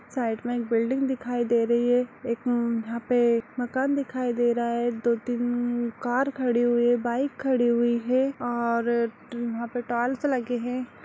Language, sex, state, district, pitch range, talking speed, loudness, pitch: Hindi, female, Bihar, Kishanganj, 235-250 Hz, 190 wpm, -26 LUFS, 240 Hz